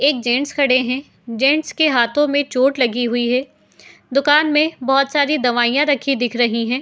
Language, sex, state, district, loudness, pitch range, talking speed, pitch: Hindi, female, Uttar Pradesh, Etah, -17 LUFS, 245-285 Hz, 220 wpm, 270 Hz